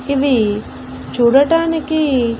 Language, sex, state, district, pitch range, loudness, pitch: Telugu, female, Andhra Pradesh, Annamaya, 235-310 Hz, -15 LUFS, 275 Hz